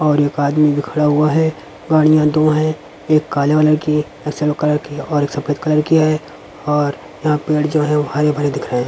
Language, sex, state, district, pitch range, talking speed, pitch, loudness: Hindi, male, Haryana, Rohtak, 145-155 Hz, 230 wpm, 150 Hz, -16 LUFS